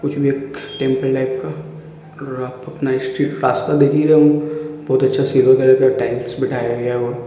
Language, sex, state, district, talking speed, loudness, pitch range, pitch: Hindi, male, Uttar Pradesh, Ghazipur, 175 wpm, -17 LUFS, 130-145 Hz, 130 Hz